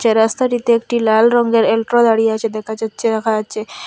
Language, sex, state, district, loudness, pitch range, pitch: Bengali, female, Assam, Hailakandi, -15 LUFS, 220-235 Hz, 225 Hz